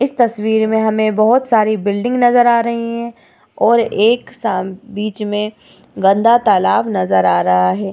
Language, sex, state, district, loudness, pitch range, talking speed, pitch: Hindi, female, Uttar Pradesh, Muzaffarnagar, -14 LUFS, 205-235 Hz, 165 wpm, 220 Hz